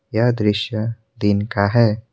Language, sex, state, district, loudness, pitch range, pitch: Hindi, male, Assam, Kamrup Metropolitan, -19 LUFS, 105-115 Hz, 110 Hz